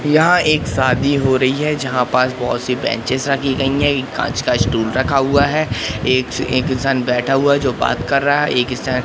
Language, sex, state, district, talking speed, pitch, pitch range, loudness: Hindi, male, Madhya Pradesh, Katni, 230 wpm, 130 Hz, 125-140 Hz, -16 LUFS